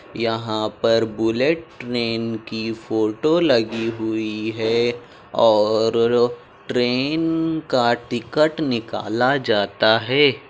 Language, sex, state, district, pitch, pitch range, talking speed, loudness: Hindi, male, Uttar Pradesh, Jalaun, 115 Hz, 110-125 Hz, 90 wpm, -20 LUFS